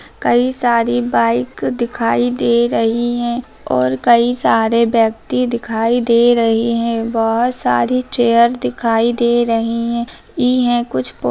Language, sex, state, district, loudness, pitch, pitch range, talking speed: Hindi, female, Bihar, Samastipur, -15 LUFS, 235 Hz, 225-240 Hz, 135 wpm